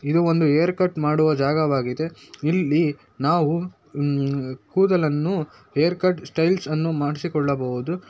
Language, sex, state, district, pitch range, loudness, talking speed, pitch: Kannada, male, Karnataka, Shimoga, 140-170 Hz, -22 LUFS, 110 wpm, 155 Hz